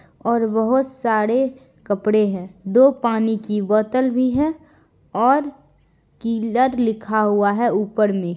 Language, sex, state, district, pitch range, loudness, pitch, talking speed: Hindi, female, Bihar, Madhepura, 210-255 Hz, -19 LUFS, 225 Hz, 130 wpm